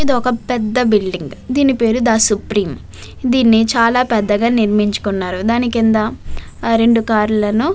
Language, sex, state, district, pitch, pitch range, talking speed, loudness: Telugu, female, Andhra Pradesh, Visakhapatnam, 225 Hz, 210-245 Hz, 130 wpm, -15 LUFS